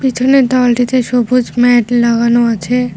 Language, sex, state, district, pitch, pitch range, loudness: Bengali, female, West Bengal, Cooch Behar, 245 Hz, 240-250 Hz, -12 LUFS